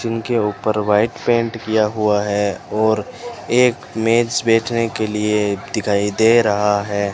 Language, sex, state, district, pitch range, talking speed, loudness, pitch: Hindi, male, Rajasthan, Bikaner, 105-115 Hz, 150 wpm, -18 LUFS, 110 Hz